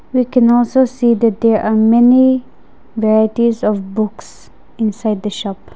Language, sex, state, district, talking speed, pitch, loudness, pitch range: English, female, Nagaland, Dimapur, 145 wpm, 230 Hz, -14 LUFS, 215-245 Hz